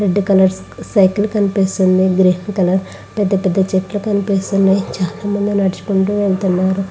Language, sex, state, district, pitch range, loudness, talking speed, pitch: Telugu, female, Andhra Pradesh, Visakhapatnam, 190-200 Hz, -15 LUFS, 120 wpm, 195 Hz